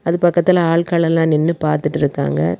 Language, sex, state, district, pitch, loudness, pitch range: Tamil, female, Tamil Nadu, Kanyakumari, 165 Hz, -16 LUFS, 150-170 Hz